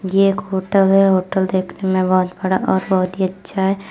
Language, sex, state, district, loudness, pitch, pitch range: Hindi, female, Uttar Pradesh, Lalitpur, -17 LUFS, 190 Hz, 185-195 Hz